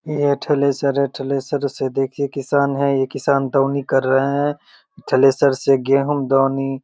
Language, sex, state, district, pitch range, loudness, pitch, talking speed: Hindi, male, Bihar, Begusarai, 135-140 Hz, -18 LUFS, 140 Hz, 175 wpm